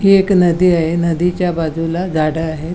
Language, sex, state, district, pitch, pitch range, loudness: Marathi, female, Goa, North and South Goa, 170 Hz, 165-180 Hz, -15 LUFS